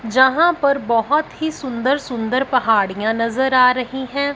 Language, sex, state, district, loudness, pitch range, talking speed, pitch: Hindi, female, Punjab, Fazilka, -17 LUFS, 235-280 Hz, 150 wpm, 260 Hz